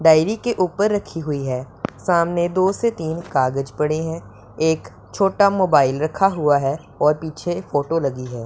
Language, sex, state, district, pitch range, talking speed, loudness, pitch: Hindi, male, Punjab, Pathankot, 145-185 Hz, 175 wpm, -20 LUFS, 160 Hz